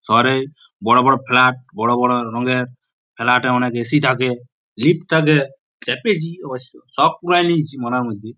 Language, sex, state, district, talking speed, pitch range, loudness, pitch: Bengali, male, West Bengal, Purulia, 165 wpm, 125-150 Hz, -17 LUFS, 125 Hz